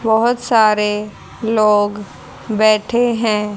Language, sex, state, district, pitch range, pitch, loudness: Hindi, female, Haryana, Rohtak, 210-225 Hz, 215 Hz, -15 LUFS